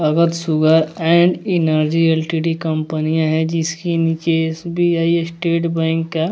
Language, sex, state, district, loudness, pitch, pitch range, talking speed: Hindi, male, Bihar, West Champaran, -17 LUFS, 165 Hz, 160-170 Hz, 125 wpm